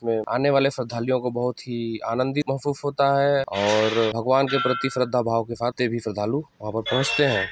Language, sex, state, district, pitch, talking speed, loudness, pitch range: Hindi, male, Chhattisgarh, Sarguja, 125 Hz, 210 wpm, -23 LUFS, 115-135 Hz